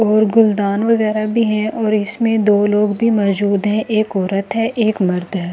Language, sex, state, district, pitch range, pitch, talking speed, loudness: Hindi, female, Delhi, New Delhi, 200-220 Hz, 215 Hz, 195 wpm, -16 LUFS